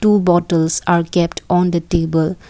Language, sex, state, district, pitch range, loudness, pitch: English, female, Assam, Kamrup Metropolitan, 165-180 Hz, -16 LUFS, 175 Hz